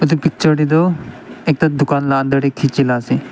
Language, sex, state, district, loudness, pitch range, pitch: Nagamese, male, Nagaland, Dimapur, -16 LUFS, 135-155 Hz, 145 Hz